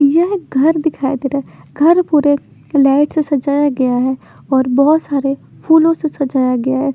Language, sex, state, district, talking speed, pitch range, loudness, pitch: Hindi, female, Chandigarh, Chandigarh, 180 wpm, 270-310 Hz, -14 LUFS, 280 Hz